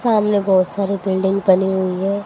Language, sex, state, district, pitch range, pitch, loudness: Hindi, female, Haryana, Jhajjar, 190-200 Hz, 195 Hz, -17 LUFS